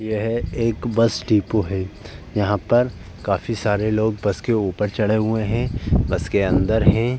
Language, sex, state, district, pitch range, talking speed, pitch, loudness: Hindi, male, Uttar Pradesh, Jalaun, 100-115 Hz, 165 wpm, 105 Hz, -21 LUFS